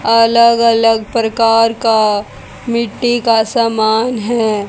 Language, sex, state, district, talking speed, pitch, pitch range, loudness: Hindi, female, Haryana, Jhajjar, 100 wpm, 230 Hz, 220-235 Hz, -13 LUFS